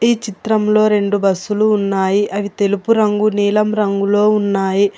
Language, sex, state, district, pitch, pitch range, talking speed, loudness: Telugu, female, Telangana, Hyderabad, 205 Hz, 200-215 Hz, 145 wpm, -15 LUFS